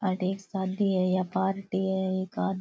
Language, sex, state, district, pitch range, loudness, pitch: Rajasthani, female, Rajasthan, Churu, 185-195 Hz, -29 LUFS, 190 Hz